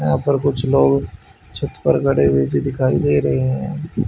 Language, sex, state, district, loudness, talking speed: Hindi, male, Haryana, Charkhi Dadri, -18 LUFS, 190 wpm